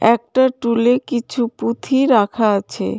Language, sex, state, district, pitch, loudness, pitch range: Bengali, female, West Bengal, Cooch Behar, 235 Hz, -17 LUFS, 230-255 Hz